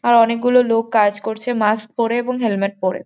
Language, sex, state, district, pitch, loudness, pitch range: Bengali, female, West Bengal, Jhargram, 225 Hz, -18 LUFS, 210-240 Hz